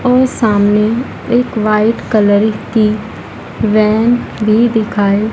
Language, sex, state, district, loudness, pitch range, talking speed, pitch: Hindi, female, Madhya Pradesh, Dhar, -13 LUFS, 210-235 Hz, 100 wpm, 215 Hz